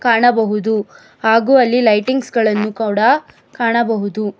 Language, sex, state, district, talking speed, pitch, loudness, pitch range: Kannada, female, Karnataka, Bangalore, 95 wpm, 225 Hz, -15 LUFS, 215-245 Hz